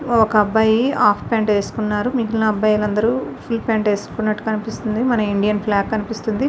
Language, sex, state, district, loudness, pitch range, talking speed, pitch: Telugu, female, Andhra Pradesh, Visakhapatnam, -19 LUFS, 210-225 Hz, 150 wpm, 220 Hz